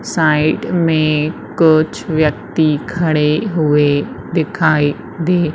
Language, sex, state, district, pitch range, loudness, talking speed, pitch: Hindi, female, Madhya Pradesh, Umaria, 150-165 Hz, -15 LUFS, 85 wpm, 155 Hz